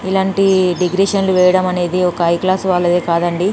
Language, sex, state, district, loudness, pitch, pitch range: Telugu, female, Telangana, Nalgonda, -14 LUFS, 185 Hz, 175-190 Hz